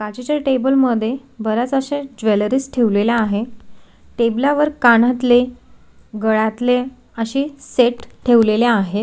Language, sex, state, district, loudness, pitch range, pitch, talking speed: Marathi, female, Maharashtra, Solapur, -17 LUFS, 225-265 Hz, 240 Hz, 100 wpm